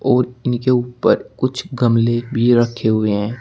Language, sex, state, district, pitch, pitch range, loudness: Hindi, male, Uttar Pradesh, Shamli, 120 Hz, 115-125 Hz, -17 LUFS